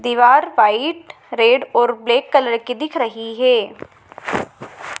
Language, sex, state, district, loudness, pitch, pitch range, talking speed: Hindi, female, Madhya Pradesh, Dhar, -16 LUFS, 245 Hz, 240-320 Hz, 120 wpm